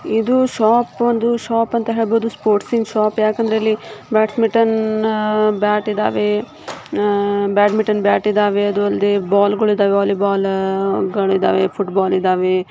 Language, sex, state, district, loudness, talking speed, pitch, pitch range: Kannada, female, Karnataka, Shimoga, -17 LUFS, 130 wpm, 210 Hz, 200-225 Hz